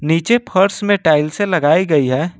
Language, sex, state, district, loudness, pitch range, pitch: Hindi, male, Jharkhand, Ranchi, -15 LUFS, 150-200 Hz, 175 Hz